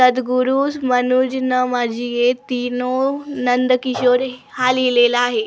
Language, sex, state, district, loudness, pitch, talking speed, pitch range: Marathi, female, Maharashtra, Gondia, -18 LUFS, 255 Hz, 110 wpm, 245-255 Hz